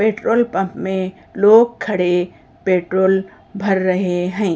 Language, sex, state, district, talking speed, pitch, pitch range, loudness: Hindi, female, Uttar Pradesh, Hamirpur, 120 wpm, 190 Hz, 185-210 Hz, -17 LUFS